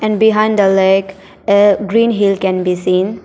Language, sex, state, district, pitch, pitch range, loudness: English, female, Arunachal Pradesh, Papum Pare, 200 Hz, 190-215 Hz, -13 LUFS